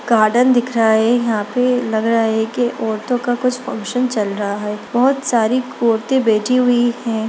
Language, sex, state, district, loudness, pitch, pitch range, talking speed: Hindi, female, Bihar, Darbhanga, -17 LUFS, 235 Hz, 220-250 Hz, 190 wpm